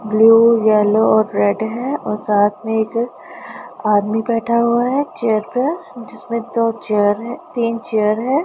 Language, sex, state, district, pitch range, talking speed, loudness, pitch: Hindi, female, Punjab, Pathankot, 215-235 Hz, 155 wpm, -17 LUFS, 225 Hz